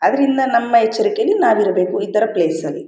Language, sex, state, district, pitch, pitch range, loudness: Kannada, female, Karnataka, Mysore, 225 Hz, 195-275 Hz, -16 LUFS